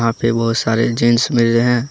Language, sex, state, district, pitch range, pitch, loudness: Hindi, male, Jharkhand, Deoghar, 115-120 Hz, 115 Hz, -15 LUFS